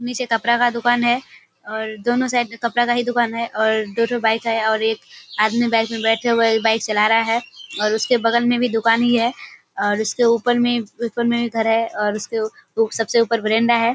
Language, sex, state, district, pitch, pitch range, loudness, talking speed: Hindi, female, Bihar, Kishanganj, 230 Hz, 220-240 Hz, -19 LUFS, 230 wpm